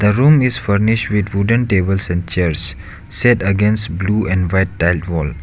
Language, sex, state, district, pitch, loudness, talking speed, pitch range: English, male, Arunachal Pradesh, Lower Dibang Valley, 100 Hz, -16 LUFS, 165 wpm, 90-110 Hz